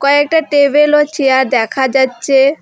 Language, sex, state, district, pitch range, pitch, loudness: Bengali, female, West Bengal, Alipurduar, 265-295 Hz, 275 Hz, -12 LUFS